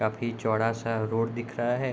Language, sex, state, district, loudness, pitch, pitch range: Hindi, male, Bihar, Gopalganj, -29 LUFS, 115 Hz, 110-120 Hz